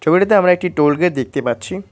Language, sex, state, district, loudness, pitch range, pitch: Bengali, male, West Bengal, Cooch Behar, -16 LUFS, 140-185 Hz, 175 Hz